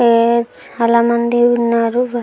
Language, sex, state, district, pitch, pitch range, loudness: Telugu, female, Andhra Pradesh, Anantapur, 235 Hz, 235-240 Hz, -14 LUFS